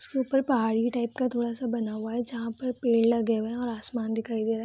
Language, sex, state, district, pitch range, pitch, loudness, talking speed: Hindi, female, Bihar, Begusarai, 225-245 Hz, 235 Hz, -28 LUFS, 270 wpm